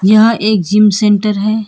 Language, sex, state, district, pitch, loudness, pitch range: Hindi, female, Karnataka, Bangalore, 210 Hz, -11 LUFS, 205-215 Hz